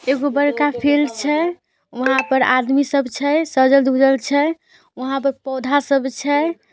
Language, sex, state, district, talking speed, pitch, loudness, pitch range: Magahi, female, Bihar, Samastipur, 140 wpm, 275 Hz, -17 LUFS, 265-290 Hz